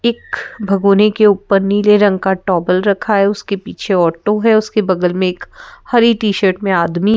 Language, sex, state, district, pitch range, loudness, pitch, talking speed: Hindi, female, Madhya Pradesh, Bhopal, 190-215 Hz, -14 LUFS, 200 Hz, 185 wpm